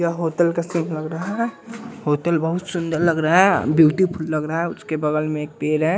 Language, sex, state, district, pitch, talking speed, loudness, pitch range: Hindi, male, Bihar, West Champaran, 165 Hz, 210 wpm, -20 LUFS, 155-175 Hz